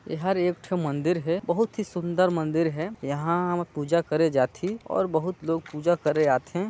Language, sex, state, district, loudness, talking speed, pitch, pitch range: Chhattisgarhi, male, Chhattisgarh, Sarguja, -26 LUFS, 180 wpm, 170 Hz, 160-180 Hz